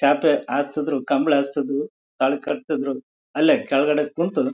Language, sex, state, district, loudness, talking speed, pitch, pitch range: Kannada, male, Karnataka, Bellary, -22 LUFS, 130 wpm, 145 Hz, 140-150 Hz